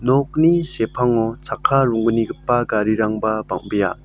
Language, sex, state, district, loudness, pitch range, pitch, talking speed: Garo, male, Meghalaya, South Garo Hills, -19 LUFS, 110-130 Hz, 115 Hz, 90 wpm